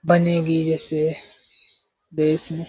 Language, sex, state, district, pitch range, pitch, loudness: Hindi, male, Uttar Pradesh, Hamirpur, 155-165 Hz, 160 Hz, -21 LUFS